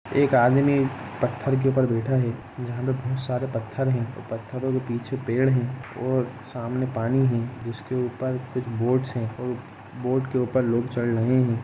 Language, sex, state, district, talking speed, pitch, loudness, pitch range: Hindi, male, Jharkhand, Jamtara, 185 wpm, 125 Hz, -25 LUFS, 120-130 Hz